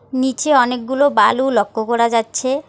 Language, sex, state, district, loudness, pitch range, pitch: Bengali, female, West Bengal, Alipurduar, -16 LUFS, 230-265 Hz, 255 Hz